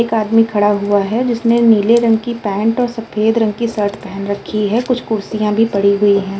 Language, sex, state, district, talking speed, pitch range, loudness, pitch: Hindi, female, Uttar Pradesh, Jalaun, 235 wpm, 205-230 Hz, -15 LUFS, 220 Hz